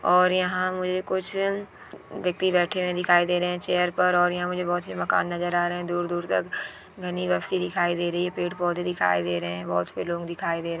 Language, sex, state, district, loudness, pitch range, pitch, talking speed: Hindi, female, West Bengal, Purulia, -25 LUFS, 175-180 Hz, 180 Hz, 235 wpm